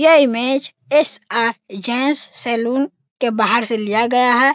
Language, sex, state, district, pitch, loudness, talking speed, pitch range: Hindi, male, Bihar, Sitamarhi, 245 Hz, -17 LUFS, 145 wpm, 230-270 Hz